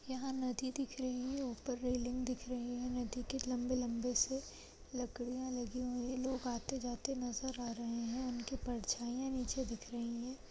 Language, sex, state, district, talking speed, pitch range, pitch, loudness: Hindi, female, Uttar Pradesh, Jalaun, 175 wpm, 245-260 Hz, 250 Hz, -40 LUFS